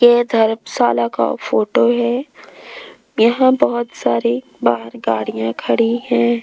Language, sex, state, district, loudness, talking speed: Hindi, female, Rajasthan, Jaipur, -17 LUFS, 110 wpm